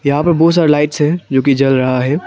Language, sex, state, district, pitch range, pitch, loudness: Hindi, male, Arunachal Pradesh, Papum Pare, 135-165 Hz, 150 Hz, -13 LUFS